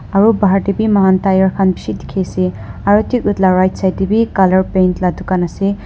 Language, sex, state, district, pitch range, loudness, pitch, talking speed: Nagamese, female, Nagaland, Dimapur, 185-200 Hz, -14 LUFS, 190 Hz, 225 wpm